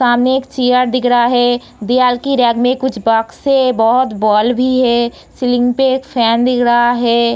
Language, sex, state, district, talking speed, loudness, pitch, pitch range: Hindi, female, Bihar, Darbhanga, 195 wpm, -13 LUFS, 245 Hz, 235-255 Hz